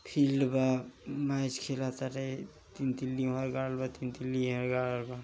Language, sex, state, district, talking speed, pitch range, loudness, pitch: Hindi, male, Uttar Pradesh, Gorakhpur, 170 wpm, 125-135 Hz, -33 LUFS, 130 Hz